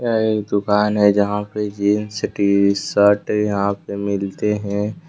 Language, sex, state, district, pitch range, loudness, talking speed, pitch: Hindi, male, Jharkhand, Deoghar, 100-105 Hz, -19 LUFS, 130 wpm, 105 Hz